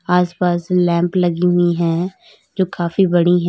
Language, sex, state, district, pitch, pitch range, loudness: Hindi, female, Uttar Pradesh, Lalitpur, 175 Hz, 175-180 Hz, -17 LUFS